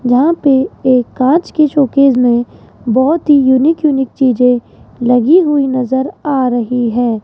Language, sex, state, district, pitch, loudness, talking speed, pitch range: Hindi, female, Rajasthan, Jaipur, 260 Hz, -12 LUFS, 150 wpm, 245-290 Hz